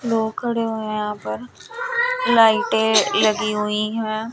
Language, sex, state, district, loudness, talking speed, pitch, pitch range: Hindi, female, Chandigarh, Chandigarh, -20 LUFS, 140 wpm, 220 Hz, 215-235 Hz